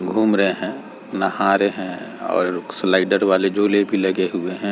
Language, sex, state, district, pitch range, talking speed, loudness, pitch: Hindi, male, Uttar Pradesh, Varanasi, 95-100 Hz, 180 wpm, -19 LUFS, 95 Hz